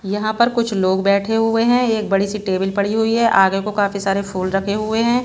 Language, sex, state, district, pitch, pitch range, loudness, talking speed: Hindi, female, Bihar, West Champaran, 205 Hz, 195-225 Hz, -18 LUFS, 250 wpm